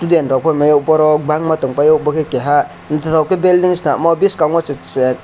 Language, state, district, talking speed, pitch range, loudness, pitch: Kokborok, Tripura, West Tripura, 170 wpm, 145-165 Hz, -14 LUFS, 155 Hz